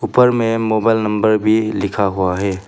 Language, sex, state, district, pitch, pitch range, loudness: Hindi, male, Arunachal Pradesh, Papum Pare, 110 Hz, 100-115 Hz, -16 LUFS